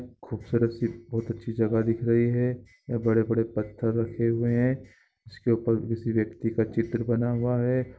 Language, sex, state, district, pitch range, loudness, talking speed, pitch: Hindi, male, Bihar, East Champaran, 115-120 Hz, -27 LUFS, 190 wpm, 115 Hz